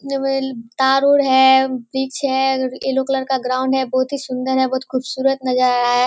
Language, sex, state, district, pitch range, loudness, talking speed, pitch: Hindi, female, Bihar, Kishanganj, 255-270 Hz, -18 LUFS, 180 wpm, 265 Hz